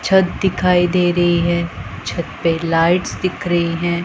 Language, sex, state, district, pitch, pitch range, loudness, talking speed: Hindi, female, Punjab, Pathankot, 175 Hz, 170-180 Hz, -17 LUFS, 160 wpm